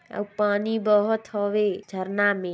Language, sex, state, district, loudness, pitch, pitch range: Hindi, female, Chhattisgarh, Sarguja, -24 LUFS, 205 Hz, 205-210 Hz